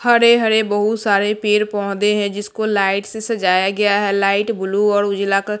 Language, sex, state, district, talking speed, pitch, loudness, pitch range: Hindi, female, Bihar, West Champaran, 190 wpm, 205 Hz, -17 LUFS, 200-215 Hz